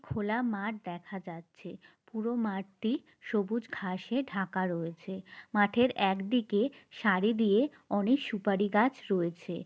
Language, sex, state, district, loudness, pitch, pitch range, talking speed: Bengali, female, West Bengal, Jalpaiguri, -31 LUFS, 205 Hz, 190-235 Hz, 120 wpm